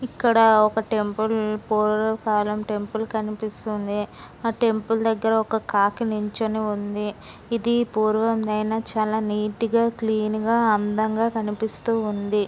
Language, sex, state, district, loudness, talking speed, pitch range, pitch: Telugu, female, Andhra Pradesh, Srikakulam, -23 LUFS, 105 wpm, 210-225 Hz, 220 Hz